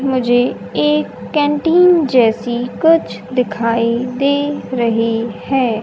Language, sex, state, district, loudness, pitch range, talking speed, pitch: Hindi, male, Haryana, Charkhi Dadri, -15 LUFS, 230-280 Hz, 95 wpm, 245 Hz